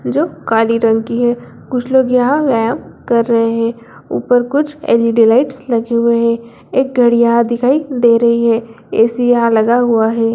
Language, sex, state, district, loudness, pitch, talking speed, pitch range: Hindi, female, Bihar, Bhagalpur, -13 LUFS, 235 Hz, 180 wpm, 230-245 Hz